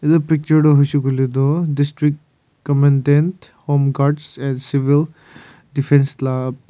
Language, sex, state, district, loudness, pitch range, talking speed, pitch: Nagamese, male, Nagaland, Kohima, -17 LUFS, 135-150 Hz, 125 wpm, 145 Hz